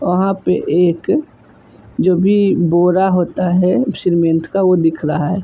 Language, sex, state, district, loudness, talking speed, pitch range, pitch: Hindi, male, Uttar Pradesh, Budaun, -15 LUFS, 165 wpm, 170-190 Hz, 180 Hz